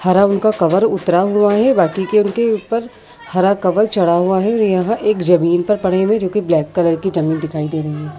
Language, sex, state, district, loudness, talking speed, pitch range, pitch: Hindi, female, Uttar Pradesh, Jyotiba Phule Nagar, -15 LUFS, 240 wpm, 175-210 Hz, 190 Hz